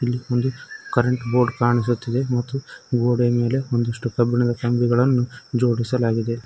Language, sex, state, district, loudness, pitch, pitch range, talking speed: Kannada, male, Karnataka, Koppal, -21 LUFS, 120 Hz, 120-125 Hz, 95 wpm